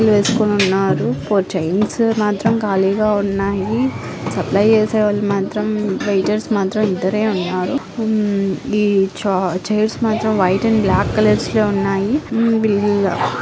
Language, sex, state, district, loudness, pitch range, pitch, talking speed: Telugu, female, Andhra Pradesh, Guntur, -17 LUFS, 195-215 Hz, 205 Hz, 105 wpm